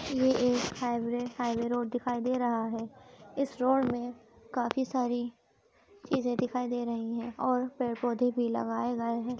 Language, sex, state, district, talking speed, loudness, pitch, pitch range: Hindi, female, Uttar Pradesh, Ghazipur, 160 wpm, -31 LUFS, 245 Hz, 235-255 Hz